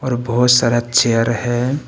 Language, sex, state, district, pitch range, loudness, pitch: Hindi, male, Arunachal Pradesh, Papum Pare, 120-125 Hz, -15 LUFS, 120 Hz